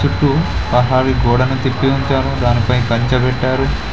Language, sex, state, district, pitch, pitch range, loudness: Telugu, male, Telangana, Mahabubabad, 125 Hz, 120-130 Hz, -15 LUFS